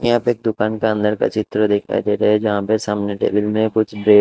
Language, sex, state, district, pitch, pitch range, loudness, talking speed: Hindi, male, Delhi, New Delhi, 105 Hz, 105-110 Hz, -18 LUFS, 255 wpm